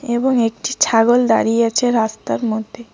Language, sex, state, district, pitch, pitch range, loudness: Bengali, female, West Bengal, Cooch Behar, 230 Hz, 225-245 Hz, -16 LUFS